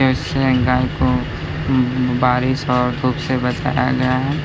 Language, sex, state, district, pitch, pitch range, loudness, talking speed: Hindi, male, Bihar, Gaya, 130 Hz, 125-130 Hz, -18 LUFS, 135 wpm